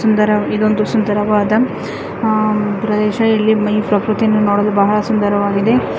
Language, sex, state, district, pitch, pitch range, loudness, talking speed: Kannada, female, Karnataka, Raichur, 210 Hz, 210-215 Hz, -15 LUFS, 110 wpm